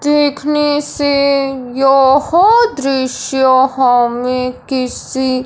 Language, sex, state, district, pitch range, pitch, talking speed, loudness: Hindi, male, Punjab, Fazilka, 255-290 Hz, 270 Hz, 65 wpm, -13 LUFS